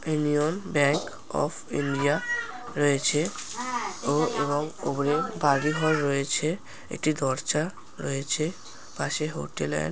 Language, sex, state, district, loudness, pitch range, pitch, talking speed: Bengali, male, West Bengal, Paschim Medinipur, -27 LUFS, 140-155 Hz, 150 Hz, 110 wpm